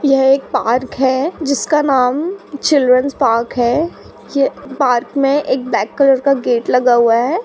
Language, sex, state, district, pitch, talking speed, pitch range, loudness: Hindi, female, Uttar Pradesh, Budaun, 270 Hz, 175 wpm, 250-285 Hz, -15 LUFS